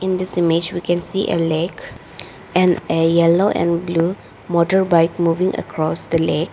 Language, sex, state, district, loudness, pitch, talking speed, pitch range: English, female, Arunachal Pradesh, Lower Dibang Valley, -18 LUFS, 170 Hz, 165 wpm, 165-185 Hz